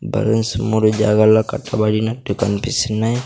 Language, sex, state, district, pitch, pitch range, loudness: Telugu, male, Andhra Pradesh, Sri Satya Sai, 110 Hz, 110-115 Hz, -17 LUFS